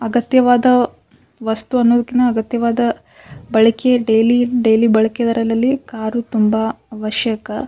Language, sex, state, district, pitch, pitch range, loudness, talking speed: Kannada, female, Karnataka, Bijapur, 230 Hz, 220-245 Hz, -16 LUFS, 100 wpm